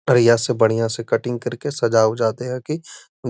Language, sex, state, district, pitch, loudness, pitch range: Magahi, male, Bihar, Gaya, 120 Hz, -20 LUFS, 115-125 Hz